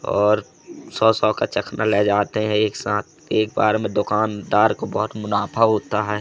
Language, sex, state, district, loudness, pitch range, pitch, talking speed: Hindi, male, Madhya Pradesh, Katni, -20 LUFS, 105-110 Hz, 105 Hz, 185 wpm